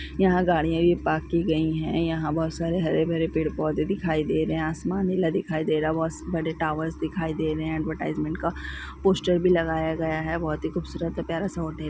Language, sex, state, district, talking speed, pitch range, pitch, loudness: Hindi, female, Rajasthan, Nagaur, 215 wpm, 160-170 Hz, 160 Hz, -26 LUFS